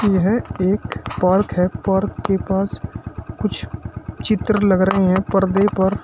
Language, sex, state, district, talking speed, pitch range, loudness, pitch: Hindi, male, Uttar Pradesh, Shamli, 140 wpm, 190-200 Hz, -19 LUFS, 195 Hz